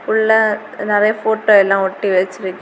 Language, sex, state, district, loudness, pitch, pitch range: Tamil, female, Tamil Nadu, Kanyakumari, -15 LUFS, 210 Hz, 195-220 Hz